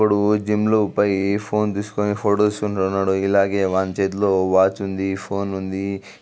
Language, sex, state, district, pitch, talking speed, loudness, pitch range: Telugu, male, Andhra Pradesh, Guntur, 100 Hz, 145 wpm, -20 LUFS, 95-105 Hz